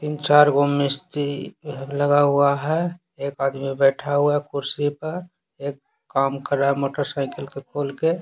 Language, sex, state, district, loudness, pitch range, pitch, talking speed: Hindi, male, Bihar, Patna, -22 LUFS, 140-145 Hz, 145 Hz, 170 wpm